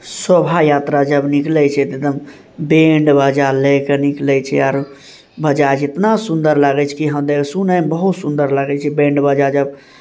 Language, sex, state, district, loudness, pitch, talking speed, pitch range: Maithili, male, Bihar, Bhagalpur, -14 LUFS, 145 Hz, 160 wpm, 140-155 Hz